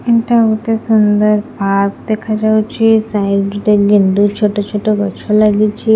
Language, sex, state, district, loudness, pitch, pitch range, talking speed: Odia, female, Odisha, Khordha, -13 LUFS, 210 Hz, 205-220 Hz, 130 wpm